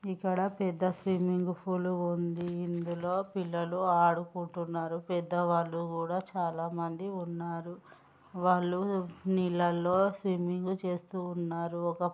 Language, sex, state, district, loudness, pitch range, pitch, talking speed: Telugu, female, Andhra Pradesh, Guntur, -32 LUFS, 170-185 Hz, 175 Hz, 95 wpm